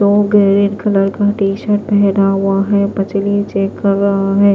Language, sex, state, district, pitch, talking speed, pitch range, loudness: Hindi, female, Maharashtra, Washim, 200 Hz, 170 wpm, 195-205 Hz, -14 LUFS